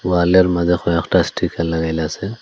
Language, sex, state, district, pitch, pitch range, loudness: Bengali, male, Assam, Hailakandi, 85 Hz, 85-90 Hz, -17 LUFS